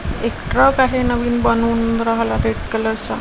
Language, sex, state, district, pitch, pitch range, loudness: Marathi, female, Maharashtra, Washim, 230 Hz, 225-240 Hz, -17 LUFS